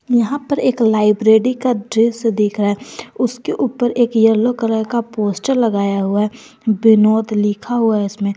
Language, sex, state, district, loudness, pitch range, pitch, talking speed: Hindi, female, Jharkhand, Garhwa, -16 LUFS, 210-240 Hz, 225 Hz, 160 wpm